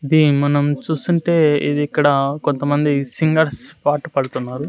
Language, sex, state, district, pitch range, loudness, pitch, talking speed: Telugu, male, Andhra Pradesh, Sri Satya Sai, 140-155 Hz, -18 LUFS, 145 Hz, 115 wpm